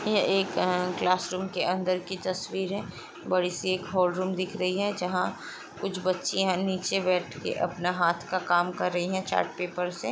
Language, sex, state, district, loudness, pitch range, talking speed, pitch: Hindi, female, Uttar Pradesh, Jalaun, -28 LUFS, 180-190 Hz, 205 wpm, 185 Hz